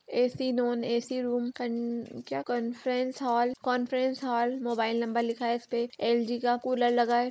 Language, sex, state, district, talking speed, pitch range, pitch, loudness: Magahi, female, Bihar, Gaya, 175 wpm, 235-250 Hz, 240 Hz, -29 LUFS